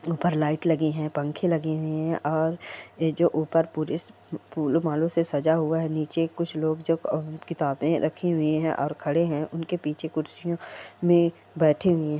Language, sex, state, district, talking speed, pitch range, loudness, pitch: Hindi, female, Rajasthan, Churu, 175 wpm, 155-165 Hz, -26 LUFS, 160 Hz